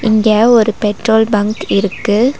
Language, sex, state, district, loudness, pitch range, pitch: Tamil, female, Tamil Nadu, Nilgiris, -12 LUFS, 210-225 Hz, 220 Hz